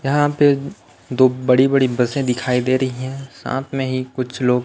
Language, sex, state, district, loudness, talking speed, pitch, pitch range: Hindi, male, Chhattisgarh, Raipur, -18 LUFS, 195 wpm, 130 Hz, 125-135 Hz